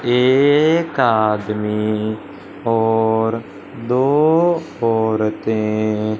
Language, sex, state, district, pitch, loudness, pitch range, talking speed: Hindi, male, Punjab, Fazilka, 110 Hz, -17 LUFS, 110-135 Hz, 50 wpm